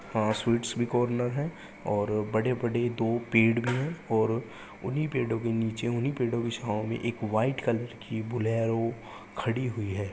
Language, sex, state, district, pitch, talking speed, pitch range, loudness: Hindi, male, Uttar Pradesh, Gorakhpur, 115 Hz, 170 wpm, 110-120 Hz, -29 LUFS